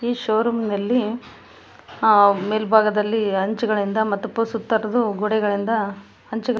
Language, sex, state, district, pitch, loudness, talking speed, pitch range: Kannada, female, Karnataka, Koppal, 220 Hz, -20 LUFS, 110 wpm, 210-230 Hz